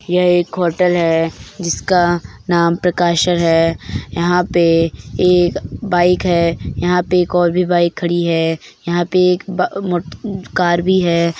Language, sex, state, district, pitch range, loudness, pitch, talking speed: Hindi, female, Bihar, Begusarai, 170-180 Hz, -16 LUFS, 175 Hz, 155 wpm